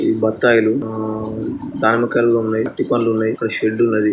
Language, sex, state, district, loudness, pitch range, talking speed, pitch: Telugu, male, Andhra Pradesh, Chittoor, -18 LUFS, 110-115 Hz, 175 wpm, 110 Hz